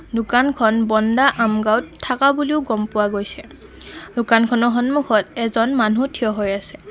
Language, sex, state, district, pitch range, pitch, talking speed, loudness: Assamese, female, Assam, Kamrup Metropolitan, 215-255 Hz, 230 Hz, 140 wpm, -18 LUFS